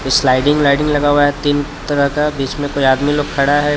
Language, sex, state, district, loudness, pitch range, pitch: Hindi, male, Jharkhand, Palamu, -15 LUFS, 140-145 Hz, 145 Hz